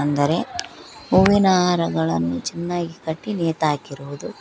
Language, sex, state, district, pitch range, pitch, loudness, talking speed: Kannada, female, Karnataka, Koppal, 140-180 Hz, 160 Hz, -21 LUFS, 95 wpm